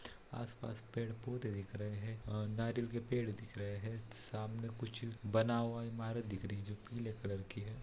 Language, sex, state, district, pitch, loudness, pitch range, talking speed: Hindi, male, Bihar, Lakhisarai, 110 Hz, -42 LUFS, 105-115 Hz, 190 wpm